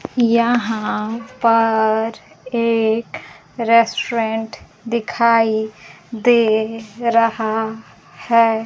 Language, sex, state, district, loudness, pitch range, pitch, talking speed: Hindi, female, Bihar, Kaimur, -18 LUFS, 220-235 Hz, 225 Hz, 55 wpm